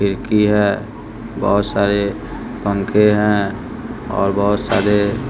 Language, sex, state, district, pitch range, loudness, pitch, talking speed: Hindi, male, Bihar, West Champaran, 100-105 Hz, -17 LUFS, 105 Hz, 100 wpm